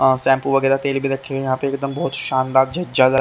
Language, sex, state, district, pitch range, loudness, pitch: Hindi, male, Haryana, Charkhi Dadri, 130-140 Hz, -19 LUFS, 135 Hz